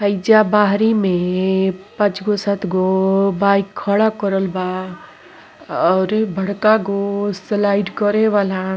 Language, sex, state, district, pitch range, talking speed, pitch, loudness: Bhojpuri, female, Uttar Pradesh, Ghazipur, 190-205 Hz, 125 wpm, 200 Hz, -17 LUFS